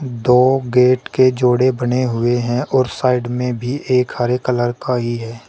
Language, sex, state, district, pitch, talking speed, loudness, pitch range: Hindi, male, Uttar Pradesh, Shamli, 125 Hz, 185 wpm, -16 LUFS, 120-130 Hz